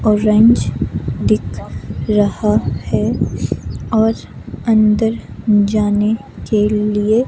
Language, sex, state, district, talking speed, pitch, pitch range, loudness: Hindi, female, Himachal Pradesh, Shimla, 75 wpm, 215 Hz, 210-220 Hz, -16 LUFS